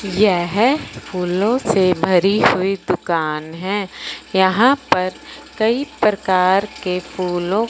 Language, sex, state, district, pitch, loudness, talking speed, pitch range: Hindi, male, Punjab, Fazilka, 190 Hz, -18 LUFS, 100 wpm, 180-210 Hz